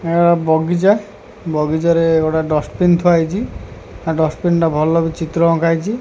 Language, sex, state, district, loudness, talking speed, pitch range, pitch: Odia, male, Odisha, Khordha, -15 LUFS, 130 wpm, 160-175 Hz, 165 Hz